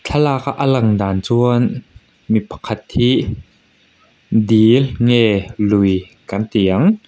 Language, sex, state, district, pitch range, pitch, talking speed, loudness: Mizo, male, Mizoram, Aizawl, 100-130 Hz, 115 Hz, 110 wpm, -16 LUFS